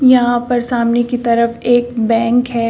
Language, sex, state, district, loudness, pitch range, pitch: Hindi, female, Uttar Pradesh, Shamli, -14 LUFS, 235-245 Hz, 240 Hz